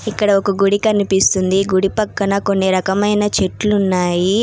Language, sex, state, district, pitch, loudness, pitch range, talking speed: Telugu, female, Telangana, Hyderabad, 195 Hz, -16 LUFS, 190-205 Hz, 150 wpm